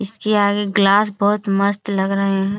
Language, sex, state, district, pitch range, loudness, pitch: Hindi, female, Bihar, Jamui, 195-205 Hz, -17 LUFS, 200 Hz